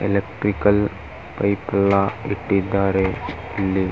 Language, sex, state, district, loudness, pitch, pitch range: Kannada, male, Karnataka, Dharwad, -21 LUFS, 100 Hz, 95-100 Hz